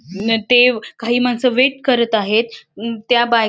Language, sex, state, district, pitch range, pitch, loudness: Marathi, female, Maharashtra, Solapur, 220-250 Hz, 235 Hz, -16 LUFS